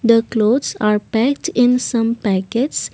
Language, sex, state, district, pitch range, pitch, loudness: English, female, Assam, Kamrup Metropolitan, 220-250 Hz, 230 Hz, -17 LUFS